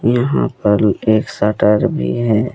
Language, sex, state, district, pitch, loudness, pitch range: Hindi, male, Jharkhand, Deoghar, 110 Hz, -15 LUFS, 105-120 Hz